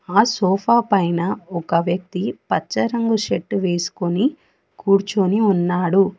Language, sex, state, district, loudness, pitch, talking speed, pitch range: Telugu, female, Telangana, Hyderabad, -19 LUFS, 195 Hz, 105 wpm, 180-210 Hz